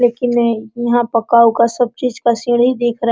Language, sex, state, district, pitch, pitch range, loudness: Hindi, female, Jharkhand, Sahebganj, 240 Hz, 235-240 Hz, -15 LUFS